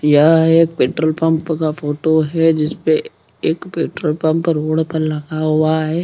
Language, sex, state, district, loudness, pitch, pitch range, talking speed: Hindi, male, Bihar, Purnia, -16 LUFS, 160 Hz, 155-160 Hz, 170 wpm